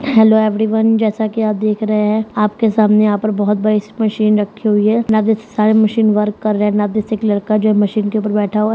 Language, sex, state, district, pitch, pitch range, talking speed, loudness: Hindi, female, Bihar, Sitamarhi, 215 Hz, 210-220 Hz, 180 wpm, -14 LUFS